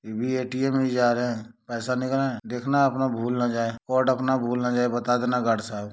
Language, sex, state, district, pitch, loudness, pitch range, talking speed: Hindi, male, Jharkhand, Sahebganj, 125 Hz, -25 LUFS, 115-130 Hz, 255 wpm